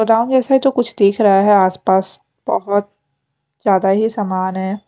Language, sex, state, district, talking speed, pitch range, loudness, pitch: Hindi, female, Punjab, Pathankot, 170 wpm, 190-225 Hz, -15 LUFS, 200 Hz